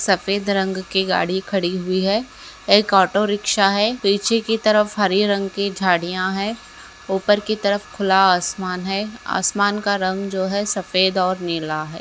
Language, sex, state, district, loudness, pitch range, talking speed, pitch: Hindi, female, Rajasthan, Nagaur, -19 LUFS, 190-205 Hz, 170 wpm, 195 Hz